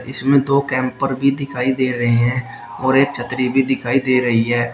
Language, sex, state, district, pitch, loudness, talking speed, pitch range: Hindi, male, Uttar Pradesh, Shamli, 130 Hz, -17 LUFS, 200 wpm, 120-135 Hz